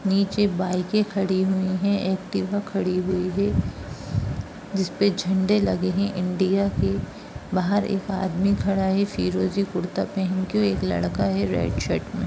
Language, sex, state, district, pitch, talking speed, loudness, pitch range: Hindi, female, Bihar, Darbhanga, 190 Hz, 155 wpm, -24 LUFS, 180-200 Hz